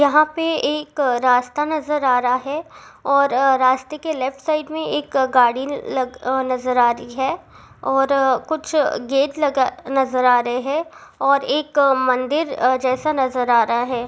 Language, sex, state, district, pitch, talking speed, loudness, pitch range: Hindi, female, Rajasthan, Churu, 270 Hz, 150 wpm, -19 LUFS, 255-300 Hz